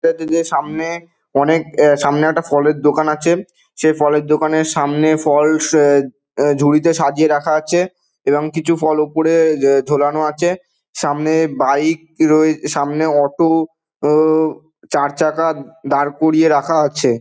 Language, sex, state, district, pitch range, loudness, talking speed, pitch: Bengali, male, West Bengal, Dakshin Dinajpur, 145-160 Hz, -15 LUFS, 135 wpm, 155 Hz